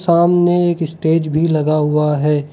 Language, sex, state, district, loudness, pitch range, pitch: Hindi, male, Arunachal Pradesh, Lower Dibang Valley, -15 LUFS, 150-170 Hz, 160 Hz